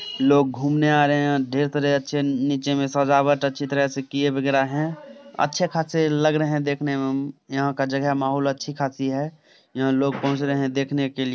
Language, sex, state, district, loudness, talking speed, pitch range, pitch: Hindi, male, Bihar, Samastipur, -22 LUFS, 200 wpm, 135-145 Hz, 140 Hz